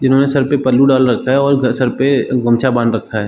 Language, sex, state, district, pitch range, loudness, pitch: Hindi, male, Chhattisgarh, Rajnandgaon, 120-135 Hz, -13 LUFS, 130 Hz